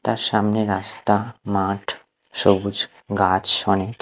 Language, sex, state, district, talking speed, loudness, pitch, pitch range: Bengali, male, Odisha, Nuapada, 105 wpm, -20 LUFS, 100 Hz, 95-105 Hz